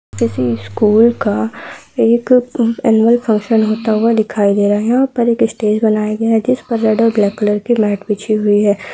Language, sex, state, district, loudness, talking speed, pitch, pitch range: Hindi, female, Uttar Pradesh, Gorakhpur, -14 LUFS, 210 wpm, 220 Hz, 210-230 Hz